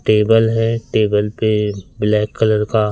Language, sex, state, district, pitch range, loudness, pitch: Hindi, male, Madhya Pradesh, Katni, 105-110 Hz, -16 LUFS, 110 Hz